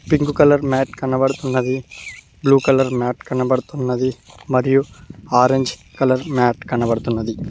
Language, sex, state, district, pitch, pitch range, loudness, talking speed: Telugu, male, Telangana, Mahabubabad, 130 Hz, 125-135 Hz, -18 LUFS, 105 wpm